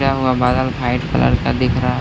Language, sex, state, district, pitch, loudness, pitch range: Hindi, male, Bihar, Gaya, 125 Hz, -17 LUFS, 125-130 Hz